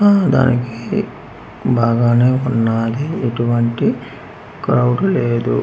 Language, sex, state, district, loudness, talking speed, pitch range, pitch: Telugu, male, Andhra Pradesh, Manyam, -16 LUFS, 75 wpm, 115-130 Hz, 120 Hz